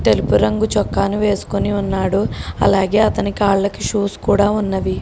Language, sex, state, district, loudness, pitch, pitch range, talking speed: Telugu, female, Telangana, Karimnagar, -17 LUFS, 200 Hz, 195-205 Hz, 145 wpm